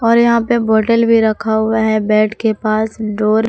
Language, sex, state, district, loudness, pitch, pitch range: Hindi, female, Jharkhand, Palamu, -14 LUFS, 220 Hz, 215-230 Hz